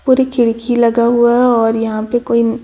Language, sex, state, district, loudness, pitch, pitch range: Hindi, female, Chhattisgarh, Raipur, -13 LUFS, 235 Hz, 230-240 Hz